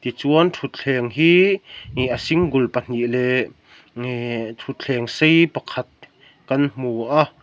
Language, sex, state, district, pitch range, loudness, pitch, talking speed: Mizo, male, Mizoram, Aizawl, 120-155 Hz, -20 LUFS, 130 Hz, 115 wpm